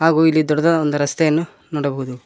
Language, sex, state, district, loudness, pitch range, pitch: Kannada, male, Karnataka, Koppal, -18 LUFS, 145-160 Hz, 155 Hz